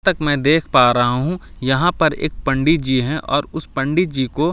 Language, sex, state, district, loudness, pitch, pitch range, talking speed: Hindi, male, Delhi, New Delhi, -17 LUFS, 145 Hz, 130-160 Hz, 210 wpm